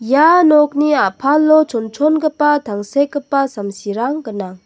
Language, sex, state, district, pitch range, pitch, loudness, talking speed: Garo, female, Meghalaya, West Garo Hills, 215-300 Hz, 280 Hz, -15 LUFS, 90 wpm